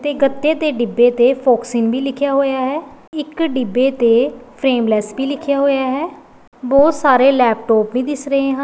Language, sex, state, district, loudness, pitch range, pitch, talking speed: Punjabi, female, Punjab, Pathankot, -16 LUFS, 245-285 Hz, 270 Hz, 180 wpm